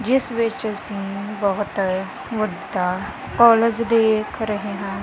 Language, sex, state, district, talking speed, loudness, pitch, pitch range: Punjabi, female, Punjab, Kapurthala, 105 wpm, -21 LUFS, 210 Hz, 195-230 Hz